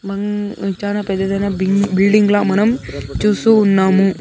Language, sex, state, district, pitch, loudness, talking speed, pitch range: Telugu, male, Andhra Pradesh, Sri Satya Sai, 200 Hz, -15 LUFS, 130 wpm, 195-205 Hz